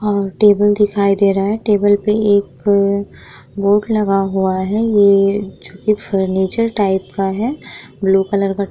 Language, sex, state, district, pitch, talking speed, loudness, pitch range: Hindi, female, Bihar, Vaishali, 200 Hz, 160 wpm, -15 LUFS, 195-210 Hz